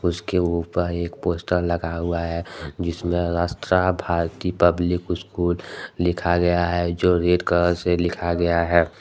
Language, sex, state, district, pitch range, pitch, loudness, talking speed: Hindi, male, Jharkhand, Deoghar, 85-90 Hz, 85 Hz, -22 LUFS, 145 wpm